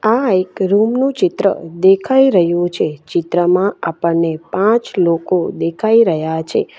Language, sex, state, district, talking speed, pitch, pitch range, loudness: Gujarati, female, Gujarat, Valsad, 135 wpm, 185 Hz, 165-220 Hz, -15 LUFS